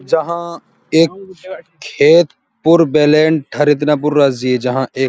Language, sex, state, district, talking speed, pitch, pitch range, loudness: Hindi, male, Uttar Pradesh, Muzaffarnagar, 70 wpm, 150 Hz, 140-170 Hz, -13 LUFS